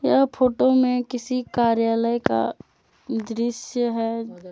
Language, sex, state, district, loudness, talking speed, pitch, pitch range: Hindi, female, Jharkhand, Deoghar, -22 LUFS, 105 wpm, 240 Hz, 230-255 Hz